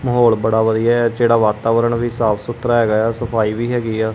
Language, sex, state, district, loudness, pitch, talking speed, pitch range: Punjabi, male, Punjab, Kapurthala, -16 LUFS, 115 Hz, 230 wpm, 110-120 Hz